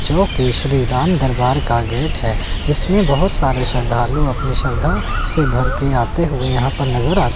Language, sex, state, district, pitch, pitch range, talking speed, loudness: Hindi, male, Chandigarh, Chandigarh, 130 Hz, 125-150 Hz, 180 wpm, -16 LUFS